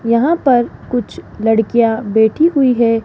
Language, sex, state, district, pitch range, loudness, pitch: Hindi, female, Rajasthan, Jaipur, 225-250 Hz, -14 LUFS, 235 Hz